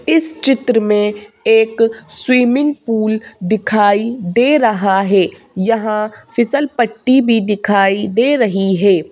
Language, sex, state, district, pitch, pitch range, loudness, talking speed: Hindi, female, Madhya Pradesh, Bhopal, 225 Hz, 205-245 Hz, -14 LUFS, 120 wpm